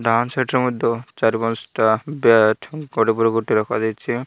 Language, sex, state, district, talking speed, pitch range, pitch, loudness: Odia, male, Odisha, Malkangiri, 155 wpm, 110-125 Hz, 115 Hz, -19 LUFS